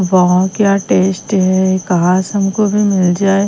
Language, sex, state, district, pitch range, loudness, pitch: Hindi, female, Himachal Pradesh, Shimla, 185-200 Hz, -13 LUFS, 190 Hz